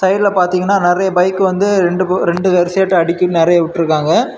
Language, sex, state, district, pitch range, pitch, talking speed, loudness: Tamil, male, Tamil Nadu, Kanyakumari, 175-190 Hz, 180 Hz, 135 wpm, -13 LUFS